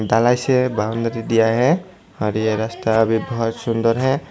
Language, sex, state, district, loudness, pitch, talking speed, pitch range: Hindi, male, Tripura, Dhalai, -19 LUFS, 115 Hz, 165 wpm, 110-125 Hz